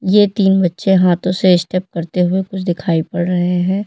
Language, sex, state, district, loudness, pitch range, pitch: Hindi, female, Uttar Pradesh, Lalitpur, -15 LUFS, 175-190 Hz, 180 Hz